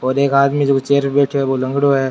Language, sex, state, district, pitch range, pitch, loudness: Rajasthani, male, Rajasthan, Churu, 135-140 Hz, 140 Hz, -15 LUFS